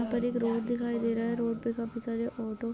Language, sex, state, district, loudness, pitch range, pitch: Hindi, female, Bihar, Kishanganj, -32 LUFS, 230-235 Hz, 230 Hz